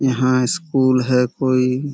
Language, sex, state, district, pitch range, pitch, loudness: Hindi, male, Uttar Pradesh, Budaun, 125-135 Hz, 130 Hz, -17 LUFS